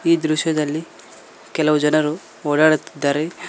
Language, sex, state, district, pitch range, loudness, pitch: Kannada, male, Karnataka, Koppal, 150-160 Hz, -19 LUFS, 155 Hz